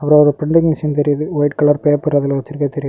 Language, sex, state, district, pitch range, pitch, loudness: Tamil, male, Tamil Nadu, Kanyakumari, 145-150 Hz, 145 Hz, -15 LUFS